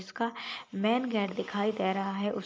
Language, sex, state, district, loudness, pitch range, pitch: Hindi, female, Uttar Pradesh, Ghazipur, -31 LUFS, 195-220 Hz, 205 Hz